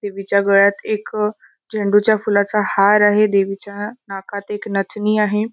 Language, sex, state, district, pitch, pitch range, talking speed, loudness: Marathi, female, Maharashtra, Solapur, 205 Hz, 200-210 Hz, 140 wpm, -17 LUFS